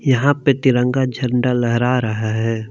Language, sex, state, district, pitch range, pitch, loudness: Hindi, male, Jharkhand, Palamu, 115-130 Hz, 125 Hz, -17 LUFS